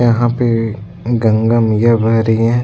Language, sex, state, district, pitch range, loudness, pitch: Hindi, male, Bihar, Jahanabad, 110-120 Hz, -14 LUFS, 115 Hz